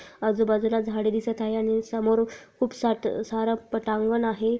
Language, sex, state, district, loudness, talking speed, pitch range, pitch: Marathi, female, Maharashtra, Chandrapur, -26 LUFS, 170 wpm, 220-230 Hz, 225 Hz